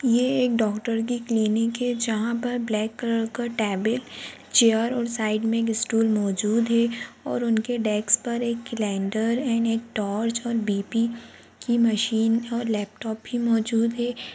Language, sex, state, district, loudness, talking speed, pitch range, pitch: Hindi, female, Bihar, Jamui, -24 LUFS, 160 wpm, 220-235 Hz, 230 Hz